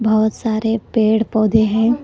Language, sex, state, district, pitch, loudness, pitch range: Hindi, female, Karnataka, Koppal, 220 Hz, -16 LUFS, 215-225 Hz